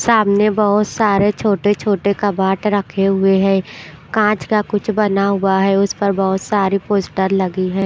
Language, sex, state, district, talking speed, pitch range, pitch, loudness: Hindi, female, Punjab, Pathankot, 160 wpm, 195-210 Hz, 200 Hz, -16 LUFS